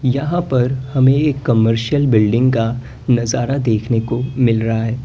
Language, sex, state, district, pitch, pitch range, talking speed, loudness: Hindi, male, Uttar Pradesh, Lalitpur, 125 Hz, 115-135 Hz, 155 wpm, -16 LUFS